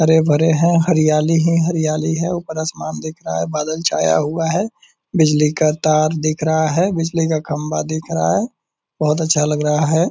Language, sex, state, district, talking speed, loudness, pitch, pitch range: Hindi, male, Bihar, Purnia, 195 wpm, -17 LUFS, 160 Hz, 150-165 Hz